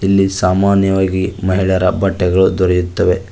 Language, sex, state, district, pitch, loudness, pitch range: Kannada, male, Karnataka, Koppal, 95 Hz, -14 LUFS, 90-95 Hz